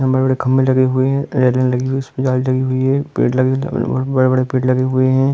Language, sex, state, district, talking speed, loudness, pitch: Hindi, male, Uttar Pradesh, Hamirpur, 145 wpm, -16 LUFS, 130 Hz